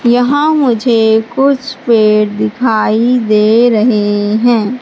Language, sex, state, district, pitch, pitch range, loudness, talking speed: Hindi, female, Madhya Pradesh, Katni, 230 Hz, 215-250 Hz, -11 LUFS, 100 wpm